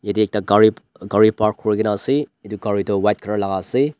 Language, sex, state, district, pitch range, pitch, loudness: Nagamese, male, Nagaland, Dimapur, 100-110 Hz, 105 Hz, -18 LUFS